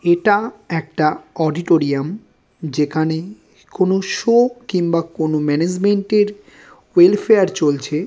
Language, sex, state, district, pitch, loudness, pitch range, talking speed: Bengali, male, West Bengal, North 24 Parganas, 175 Hz, -17 LUFS, 155-205 Hz, 90 wpm